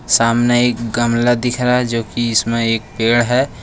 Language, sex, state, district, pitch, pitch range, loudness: Hindi, male, Jharkhand, Ranchi, 120 Hz, 115-120 Hz, -16 LUFS